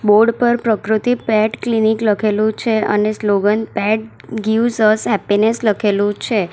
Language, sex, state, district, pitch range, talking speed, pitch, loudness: Gujarati, female, Gujarat, Valsad, 210-225 Hz, 140 wpm, 215 Hz, -16 LUFS